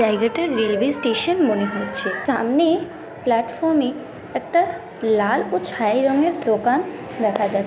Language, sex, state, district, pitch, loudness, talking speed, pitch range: Bengali, female, West Bengal, Dakshin Dinajpur, 240 Hz, -20 LUFS, 125 wpm, 215-330 Hz